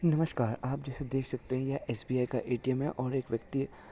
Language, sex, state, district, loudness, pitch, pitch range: Hindi, male, Maharashtra, Solapur, -34 LUFS, 130 Hz, 125-140 Hz